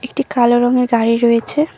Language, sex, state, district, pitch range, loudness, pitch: Bengali, female, West Bengal, Cooch Behar, 235-255 Hz, -14 LUFS, 240 Hz